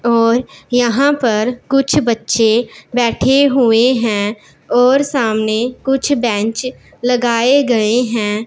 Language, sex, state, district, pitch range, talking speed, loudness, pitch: Hindi, female, Punjab, Pathankot, 225-260 Hz, 105 wpm, -14 LUFS, 240 Hz